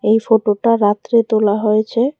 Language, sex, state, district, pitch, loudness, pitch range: Bengali, female, Tripura, West Tripura, 220 Hz, -15 LUFS, 210-230 Hz